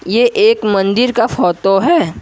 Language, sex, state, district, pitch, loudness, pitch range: Hindi, male, Assam, Kamrup Metropolitan, 220 Hz, -13 LUFS, 195-240 Hz